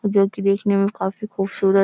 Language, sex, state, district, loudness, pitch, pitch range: Hindi, female, Bihar, Samastipur, -21 LUFS, 195 Hz, 195-200 Hz